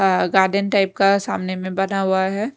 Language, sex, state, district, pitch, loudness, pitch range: Hindi, female, Punjab, Kapurthala, 195 Hz, -19 LUFS, 190-200 Hz